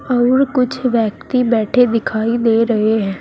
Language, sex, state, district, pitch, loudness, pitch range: Hindi, female, Uttar Pradesh, Saharanpur, 235 Hz, -15 LUFS, 220-250 Hz